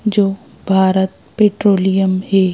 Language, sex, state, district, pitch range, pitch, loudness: Hindi, female, Madhya Pradesh, Bhopal, 190-205 Hz, 195 Hz, -15 LUFS